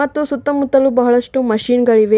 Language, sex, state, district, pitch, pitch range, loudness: Kannada, female, Karnataka, Bidar, 255 Hz, 240-280 Hz, -14 LUFS